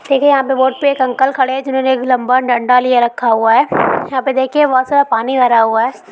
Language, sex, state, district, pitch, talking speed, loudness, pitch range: Hindi, female, West Bengal, Kolkata, 260 Hz, 255 wpm, -13 LUFS, 245-270 Hz